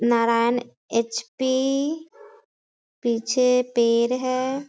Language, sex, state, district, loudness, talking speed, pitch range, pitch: Hindi, female, Bihar, Sitamarhi, -22 LUFS, 65 wpm, 235-270 Hz, 250 Hz